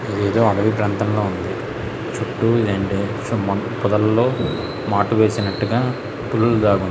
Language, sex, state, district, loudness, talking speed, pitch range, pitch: Telugu, male, Andhra Pradesh, Krishna, -20 LUFS, 85 wpm, 100-115 Hz, 105 Hz